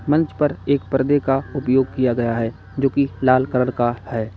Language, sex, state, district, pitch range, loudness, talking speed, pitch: Hindi, male, Uttar Pradesh, Lalitpur, 120-140 Hz, -20 LUFS, 190 wpm, 130 Hz